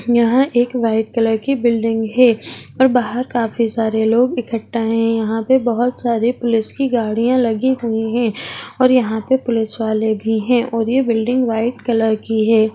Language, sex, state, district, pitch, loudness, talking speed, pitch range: Hindi, female, Bihar, Jahanabad, 230 Hz, -17 LUFS, 180 wpm, 225-245 Hz